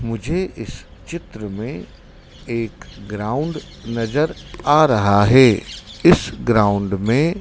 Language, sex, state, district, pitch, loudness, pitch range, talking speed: Hindi, male, Madhya Pradesh, Dhar, 115 Hz, -18 LUFS, 105-145 Hz, 115 wpm